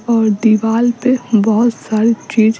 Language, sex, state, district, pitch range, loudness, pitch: Hindi, female, Bihar, Patna, 220-240 Hz, -14 LUFS, 225 Hz